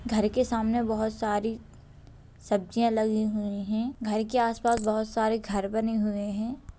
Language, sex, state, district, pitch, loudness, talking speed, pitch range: Hindi, male, Bihar, Gopalganj, 220 Hz, -28 LUFS, 160 wpm, 210-230 Hz